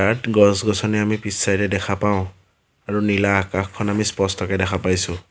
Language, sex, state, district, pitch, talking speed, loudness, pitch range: Assamese, male, Assam, Sonitpur, 100 Hz, 170 wpm, -20 LUFS, 95-105 Hz